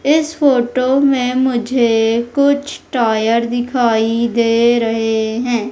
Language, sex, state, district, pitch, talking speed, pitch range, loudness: Hindi, female, Madhya Pradesh, Umaria, 240 Hz, 105 wpm, 230-260 Hz, -15 LUFS